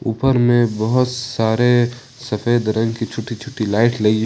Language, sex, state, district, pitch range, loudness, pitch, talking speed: Hindi, male, Jharkhand, Ranchi, 110-120 Hz, -18 LUFS, 120 Hz, 155 wpm